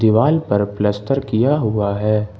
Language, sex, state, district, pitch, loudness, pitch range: Hindi, male, Jharkhand, Ranchi, 110 Hz, -18 LUFS, 105-135 Hz